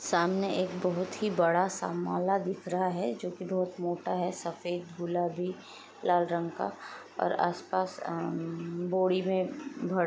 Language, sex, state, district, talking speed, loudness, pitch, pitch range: Hindi, female, Chhattisgarh, Sukma, 150 wpm, -31 LUFS, 180 Hz, 175-185 Hz